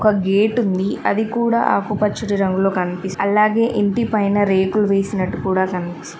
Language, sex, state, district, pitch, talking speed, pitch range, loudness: Telugu, female, Telangana, Mahabubabad, 200 Hz, 155 wpm, 190-215 Hz, -18 LUFS